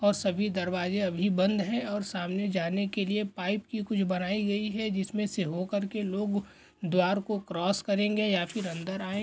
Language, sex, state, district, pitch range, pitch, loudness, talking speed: Hindi, male, Chhattisgarh, Korba, 190-205 Hz, 200 Hz, -30 LUFS, 195 wpm